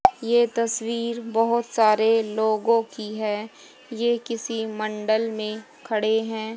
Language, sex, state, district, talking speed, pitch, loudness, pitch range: Hindi, female, Haryana, Jhajjar, 120 wpm, 225 Hz, -24 LUFS, 220-230 Hz